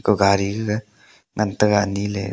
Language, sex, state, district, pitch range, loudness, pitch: Wancho, male, Arunachal Pradesh, Longding, 100-105 Hz, -20 LUFS, 105 Hz